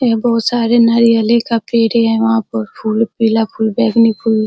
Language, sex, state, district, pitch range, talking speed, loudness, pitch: Hindi, female, Uttar Pradesh, Hamirpur, 225-230 Hz, 200 wpm, -13 LUFS, 230 Hz